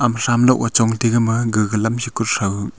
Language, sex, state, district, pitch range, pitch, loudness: Wancho, male, Arunachal Pradesh, Longding, 110-120 Hz, 115 Hz, -17 LUFS